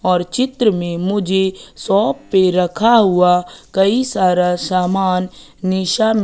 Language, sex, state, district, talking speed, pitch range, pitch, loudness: Hindi, female, Madhya Pradesh, Katni, 115 wpm, 180-205 Hz, 185 Hz, -16 LUFS